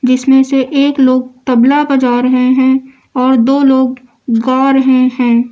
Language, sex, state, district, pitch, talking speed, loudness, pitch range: Hindi, female, Uttar Pradesh, Lucknow, 260 Hz, 150 wpm, -11 LUFS, 255-265 Hz